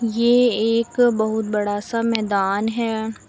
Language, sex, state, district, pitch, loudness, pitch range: Hindi, female, Uttar Pradesh, Lucknow, 225 Hz, -20 LUFS, 215-230 Hz